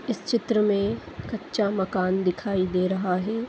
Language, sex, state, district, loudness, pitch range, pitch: Hindi, female, Uttar Pradesh, Deoria, -25 LUFS, 185-220 Hz, 200 Hz